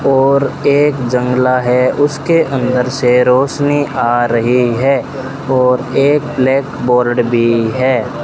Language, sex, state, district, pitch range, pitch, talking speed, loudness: Hindi, male, Rajasthan, Bikaner, 125-140 Hz, 130 Hz, 125 wpm, -13 LUFS